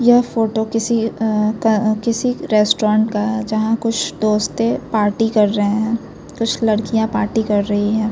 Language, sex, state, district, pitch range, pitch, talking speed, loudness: Hindi, female, Bihar, Muzaffarpur, 215-230 Hz, 220 Hz, 165 wpm, -17 LUFS